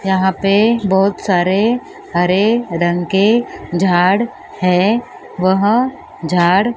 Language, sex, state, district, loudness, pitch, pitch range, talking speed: Hindi, female, Maharashtra, Mumbai Suburban, -15 LUFS, 190 Hz, 180-220 Hz, 100 wpm